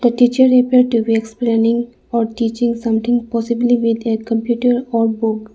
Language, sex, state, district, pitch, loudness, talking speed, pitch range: English, female, Arunachal Pradesh, Lower Dibang Valley, 235 Hz, -16 LUFS, 150 wpm, 225-245 Hz